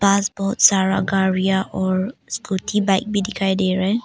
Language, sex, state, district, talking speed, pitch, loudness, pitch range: Hindi, female, Arunachal Pradesh, Papum Pare, 160 wpm, 195 Hz, -19 LUFS, 190-200 Hz